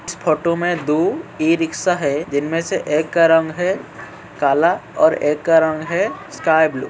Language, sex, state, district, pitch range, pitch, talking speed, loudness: Hindi, male, Uttar Pradesh, Jyotiba Phule Nagar, 155-170 Hz, 165 Hz, 180 wpm, -18 LUFS